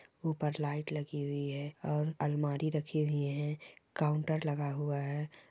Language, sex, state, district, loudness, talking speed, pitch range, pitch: Hindi, female, Rajasthan, Churu, -35 LUFS, 150 wpm, 145-155 Hz, 150 Hz